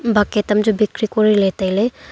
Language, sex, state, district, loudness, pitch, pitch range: Wancho, female, Arunachal Pradesh, Longding, -17 LUFS, 210 Hz, 205-220 Hz